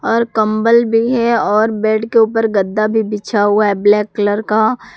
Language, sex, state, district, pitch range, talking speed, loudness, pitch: Hindi, female, Jharkhand, Palamu, 210-225 Hz, 195 wpm, -14 LUFS, 220 Hz